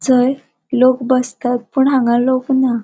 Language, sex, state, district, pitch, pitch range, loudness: Konkani, female, Goa, North and South Goa, 255 Hz, 245-265 Hz, -15 LUFS